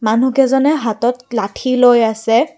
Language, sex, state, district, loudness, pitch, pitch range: Assamese, female, Assam, Kamrup Metropolitan, -14 LUFS, 245 Hz, 225-260 Hz